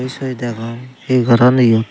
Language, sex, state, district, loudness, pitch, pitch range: Chakma, male, Tripura, Dhalai, -14 LUFS, 125 Hz, 120-130 Hz